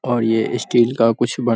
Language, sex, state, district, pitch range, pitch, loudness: Hindi, female, Bihar, Sitamarhi, 115-120 Hz, 120 Hz, -17 LUFS